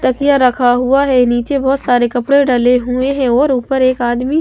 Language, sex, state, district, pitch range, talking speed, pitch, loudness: Hindi, female, Bihar, West Champaran, 245-275 Hz, 205 wpm, 255 Hz, -13 LUFS